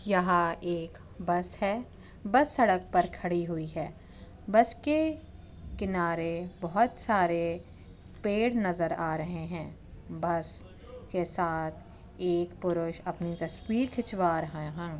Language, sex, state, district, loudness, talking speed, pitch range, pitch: Hindi, female, Uttar Pradesh, Muzaffarnagar, -30 LUFS, 120 wpm, 165-200 Hz, 175 Hz